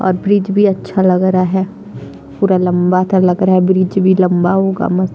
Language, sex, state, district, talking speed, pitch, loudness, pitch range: Hindi, female, Chhattisgarh, Sukma, 220 wpm, 185 Hz, -13 LUFS, 185-190 Hz